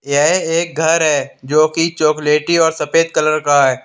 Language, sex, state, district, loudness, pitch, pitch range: Hindi, male, Uttar Pradesh, Lalitpur, -14 LUFS, 155 Hz, 145-165 Hz